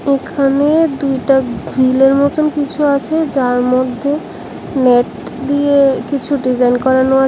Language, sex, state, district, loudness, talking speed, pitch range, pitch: Bengali, male, Tripura, West Tripura, -14 LUFS, 115 wpm, 260-285 Hz, 275 Hz